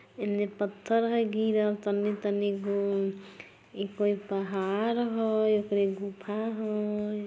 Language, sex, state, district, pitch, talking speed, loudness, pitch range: Maithili, female, Bihar, Samastipur, 205 Hz, 125 wpm, -29 LUFS, 200-215 Hz